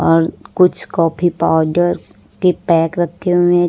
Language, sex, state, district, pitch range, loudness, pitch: Hindi, female, Uttar Pradesh, Lucknow, 165-175 Hz, -15 LUFS, 175 Hz